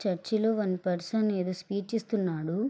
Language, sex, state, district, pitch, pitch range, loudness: Telugu, female, Andhra Pradesh, Srikakulam, 200 Hz, 180-220 Hz, -30 LUFS